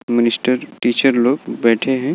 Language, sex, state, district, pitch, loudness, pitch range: Hindi, male, Bihar, Gaya, 120 Hz, -17 LUFS, 120-130 Hz